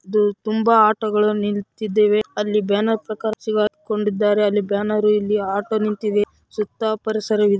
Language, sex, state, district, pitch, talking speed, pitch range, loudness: Kannada, female, Karnataka, Raichur, 210 Hz, 120 wpm, 205-215 Hz, -20 LUFS